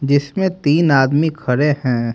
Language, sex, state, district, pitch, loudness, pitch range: Hindi, male, Haryana, Jhajjar, 145 Hz, -16 LUFS, 135-160 Hz